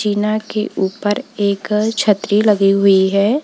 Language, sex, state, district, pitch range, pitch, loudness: Hindi, female, Uttar Pradesh, Lalitpur, 200-215 Hz, 205 Hz, -16 LUFS